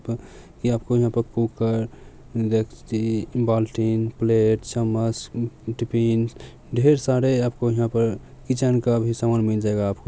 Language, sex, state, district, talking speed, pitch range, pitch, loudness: Maithili, male, Bihar, Samastipur, 130 wpm, 110-120 Hz, 115 Hz, -23 LUFS